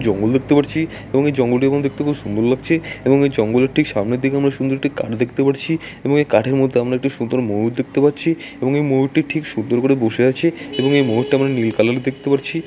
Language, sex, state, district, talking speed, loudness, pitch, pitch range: Bengali, male, West Bengal, Jalpaiguri, 225 wpm, -18 LUFS, 135 Hz, 125-145 Hz